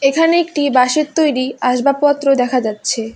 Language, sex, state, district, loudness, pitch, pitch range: Bengali, female, West Bengal, Alipurduar, -15 LUFS, 275 Hz, 250-295 Hz